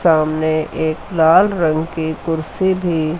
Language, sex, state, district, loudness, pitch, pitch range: Hindi, female, Chandigarh, Chandigarh, -17 LUFS, 160 Hz, 155-170 Hz